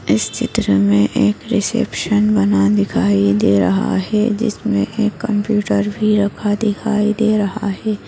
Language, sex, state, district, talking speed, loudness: Hindi, female, Maharashtra, Aurangabad, 140 wpm, -16 LUFS